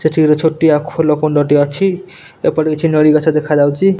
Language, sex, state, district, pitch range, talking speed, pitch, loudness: Odia, male, Odisha, Nuapada, 150-160 Hz, 165 wpm, 155 Hz, -13 LUFS